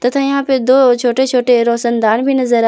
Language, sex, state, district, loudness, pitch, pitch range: Hindi, female, Jharkhand, Palamu, -13 LUFS, 250 Hz, 235-265 Hz